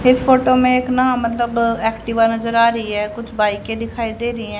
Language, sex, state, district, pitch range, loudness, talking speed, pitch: Hindi, female, Haryana, Rohtak, 225-250 Hz, -17 LUFS, 235 wpm, 230 Hz